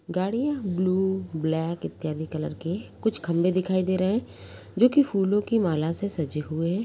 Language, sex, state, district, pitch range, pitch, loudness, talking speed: Hindi, female, Bihar, Araria, 160-205 Hz, 185 Hz, -26 LUFS, 175 wpm